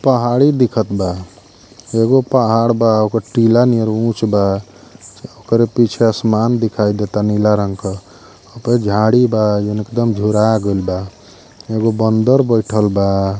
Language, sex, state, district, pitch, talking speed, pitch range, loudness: Bhojpuri, male, Uttar Pradesh, Ghazipur, 110 Hz, 140 wpm, 100-115 Hz, -15 LUFS